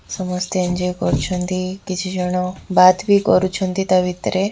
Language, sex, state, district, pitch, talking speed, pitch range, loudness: Odia, female, Odisha, Khordha, 185 Hz, 130 wpm, 180-185 Hz, -18 LUFS